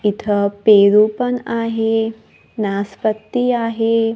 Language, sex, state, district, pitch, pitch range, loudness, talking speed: Marathi, female, Maharashtra, Gondia, 225 Hz, 205-230 Hz, -17 LUFS, 85 wpm